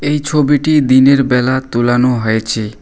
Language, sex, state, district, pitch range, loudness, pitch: Bengali, male, West Bengal, Alipurduar, 120-145 Hz, -12 LUFS, 130 Hz